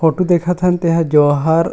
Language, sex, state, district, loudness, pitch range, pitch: Chhattisgarhi, male, Chhattisgarh, Rajnandgaon, -14 LUFS, 160-175 Hz, 165 Hz